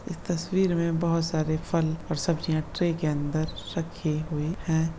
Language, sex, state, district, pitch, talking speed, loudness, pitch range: Hindi, male, Bihar, Darbhanga, 165 Hz, 170 wpm, -28 LUFS, 155-170 Hz